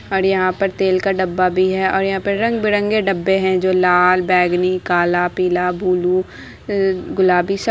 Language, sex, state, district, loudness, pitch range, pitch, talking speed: Hindi, female, Bihar, Araria, -17 LUFS, 180-195 Hz, 185 Hz, 185 wpm